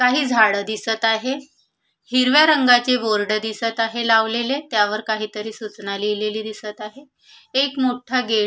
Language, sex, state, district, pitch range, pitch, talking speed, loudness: Marathi, female, Maharashtra, Solapur, 215-255 Hz, 225 Hz, 140 wpm, -19 LUFS